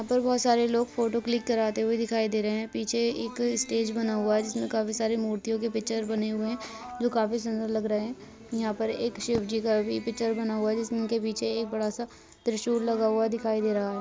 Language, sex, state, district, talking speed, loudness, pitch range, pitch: Hindi, female, Bihar, Vaishali, 245 wpm, -28 LUFS, 220-235 Hz, 225 Hz